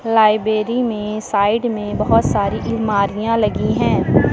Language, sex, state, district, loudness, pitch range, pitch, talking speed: Hindi, female, Uttar Pradesh, Lucknow, -17 LUFS, 205-225 Hz, 215 Hz, 125 wpm